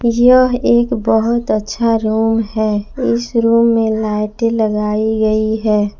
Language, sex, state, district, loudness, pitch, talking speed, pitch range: Hindi, female, Jharkhand, Palamu, -14 LUFS, 225 Hz, 130 wpm, 215-235 Hz